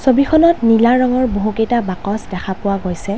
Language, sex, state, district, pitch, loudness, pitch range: Assamese, female, Assam, Kamrup Metropolitan, 225 Hz, -15 LUFS, 200-255 Hz